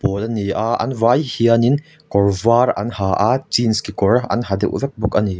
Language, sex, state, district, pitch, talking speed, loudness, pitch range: Mizo, male, Mizoram, Aizawl, 115 Hz, 210 wpm, -18 LUFS, 100-125 Hz